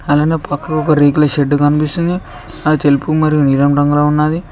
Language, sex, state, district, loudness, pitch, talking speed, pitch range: Telugu, male, Telangana, Mahabubabad, -13 LUFS, 150 Hz, 160 wpm, 145-155 Hz